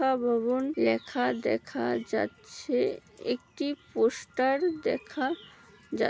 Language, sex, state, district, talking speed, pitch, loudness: Bengali, female, West Bengal, Malda, 80 wpm, 240 Hz, -30 LUFS